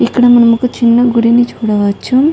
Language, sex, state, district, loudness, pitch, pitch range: Telugu, female, Telangana, Nalgonda, -10 LUFS, 235 Hz, 230-245 Hz